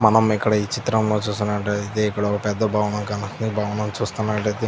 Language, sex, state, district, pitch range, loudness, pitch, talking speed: Telugu, male, Andhra Pradesh, Krishna, 105-110 Hz, -22 LUFS, 105 Hz, 180 wpm